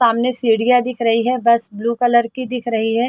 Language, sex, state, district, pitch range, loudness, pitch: Hindi, female, Chhattisgarh, Bilaspur, 230-250 Hz, -17 LUFS, 235 Hz